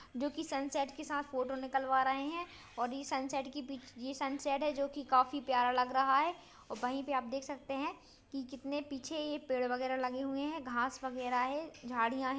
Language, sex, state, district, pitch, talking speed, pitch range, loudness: Hindi, female, Maharashtra, Aurangabad, 270 Hz, 215 wpm, 255-285 Hz, -36 LUFS